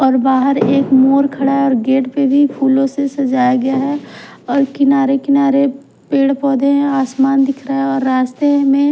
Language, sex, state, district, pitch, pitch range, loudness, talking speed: Hindi, female, Himachal Pradesh, Shimla, 275 Hz, 265-280 Hz, -14 LUFS, 180 wpm